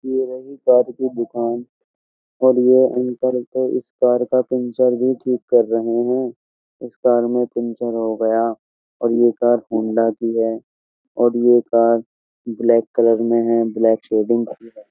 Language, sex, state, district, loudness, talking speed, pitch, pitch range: Hindi, male, Uttar Pradesh, Jyotiba Phule Nagar, -18 LUFS, 155 wpm, 120 Hz, 115-125 Hz